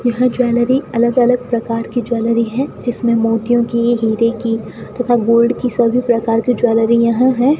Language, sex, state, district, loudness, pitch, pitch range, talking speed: Hindi, female, Rajasthan, Bikaner, -15 LUFS, 235 Hz, 230-245 Hz, 175 wpm